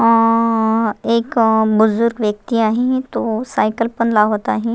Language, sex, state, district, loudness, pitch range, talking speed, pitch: Marathi, female, Maharashtra, Nagpur, -16 LUFS, 220-230 Hz, 125 wpm, 230 Hz